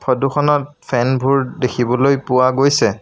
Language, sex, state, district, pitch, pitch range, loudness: Assamese, male, Assam, Sonitpur, 130 Hz, 125-140 Hz, -16 LUFS